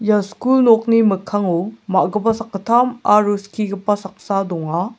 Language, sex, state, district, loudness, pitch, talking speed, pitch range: Garo, male, Meghalaya, South Garo Hills, -17 LUFS, 205 Hz, 120 wpm, 195-225 Hz